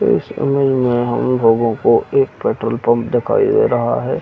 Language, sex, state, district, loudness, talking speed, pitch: Hindi, male, Chhattisgarh, Bilaspur, -16 LUFS, 185 wpm, 130 Hz